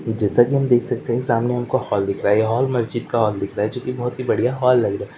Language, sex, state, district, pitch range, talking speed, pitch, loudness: Hindi, male, West Bengal, Purulia, 105-125 Hz, 325 wpm, 120 Hz, -20 LUFS